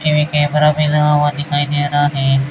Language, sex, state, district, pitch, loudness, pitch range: Hindi, male, Rajasthan, Bikaner, 145 Hz, -15 LUFS, 145-150 Hz